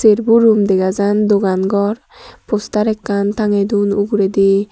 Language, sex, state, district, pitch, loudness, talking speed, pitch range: Chakma, female, Tripura, Dhalai, 205 Hz, -15 LUFS, 140 wpm, 200-215 Hz